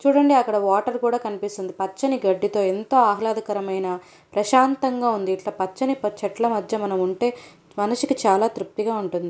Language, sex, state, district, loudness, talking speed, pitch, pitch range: Telugu, female, Andhra Pradesh, Anantapur, -22 LUFS, 140 wpm, 210 Hz, 190-240 Hz